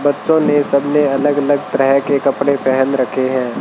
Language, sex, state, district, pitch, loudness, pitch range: Hindi, male, Rajasthan, Bikaner, 140 Hz, -15 LUFS, 135-145 Hz